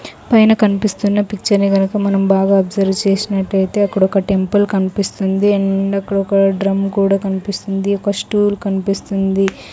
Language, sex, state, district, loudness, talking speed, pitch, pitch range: Telugu, female, Andhra Pradesh, Sri Satya Sai, -15 LUFS, 125 wpm, 195 Hz, 195-205 Hz